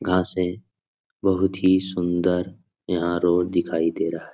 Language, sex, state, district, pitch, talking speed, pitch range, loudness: Hindi, male, Bihar, Supaul, 90 Hz, 140 wpm, 90-95 Hz, -23 LUFS